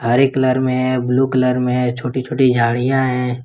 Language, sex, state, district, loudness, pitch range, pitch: Hindi, male, Jharkhand, Ranchi, -17 LUFS, 125-130 Hz, 125 Hz